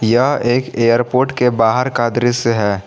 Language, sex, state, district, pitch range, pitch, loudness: Hindi, male, Jharkhand, Garhwa, 115-125 Hz, 120 Hz, -15 LUFS